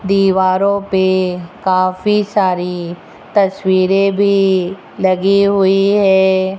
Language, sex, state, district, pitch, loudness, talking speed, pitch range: Hindi, female, Rajasthan, Jaipur, 190 Hz, -14 LUFS, 80 wpm, 185-195 Hz